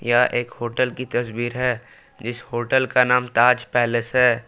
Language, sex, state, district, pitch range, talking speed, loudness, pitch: Hindi, male, Jharkhand, Palamu, 120-125 Hz, 175 wpm, -21 LUFS, 125 Hz